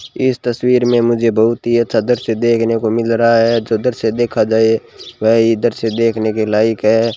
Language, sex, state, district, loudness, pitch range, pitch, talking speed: Hindi, male, Rajasthan, Bikaner, -14 LUFS, 110-120 Hz, 115 Hz, 200 wpm